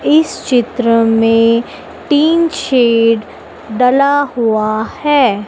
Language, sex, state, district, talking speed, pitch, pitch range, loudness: Hindi, female, Madhya Pradesh, Dhar, 90 wpm, 240 Hz, 225-285 Hz, -12 LUFS